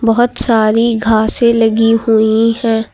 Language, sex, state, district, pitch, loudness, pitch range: Hindi, female, Uttar Pradesh, Lucknow, 225 Hz, -12 LUFS, 220-230 Hz